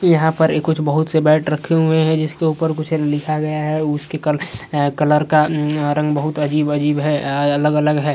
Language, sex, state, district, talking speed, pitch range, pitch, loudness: Hindi, male, Uttar Pradesh, Varanasi, 215 wpm, 150-160 Hz, 150 Hz, -17 LUFS